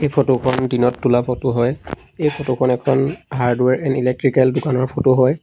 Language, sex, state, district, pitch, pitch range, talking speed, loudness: Assamese, male, Assam, Sonitpur, 130 Hz, 125-135 Hz, 175 wpm, -18 LUFS